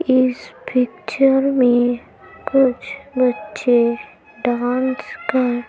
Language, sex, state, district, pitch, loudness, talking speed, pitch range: Hindi, female, Madhya Pradesh, Bhopal, 250 Hz, -18 LUFS, 75 wpm, 240-260 Hz